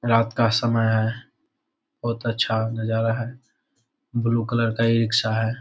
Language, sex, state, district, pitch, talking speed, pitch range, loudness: Hindi, male, Bihar, Saharsa, 115 Hz, 140 wpm, 115-120 Hz, -23 LUFS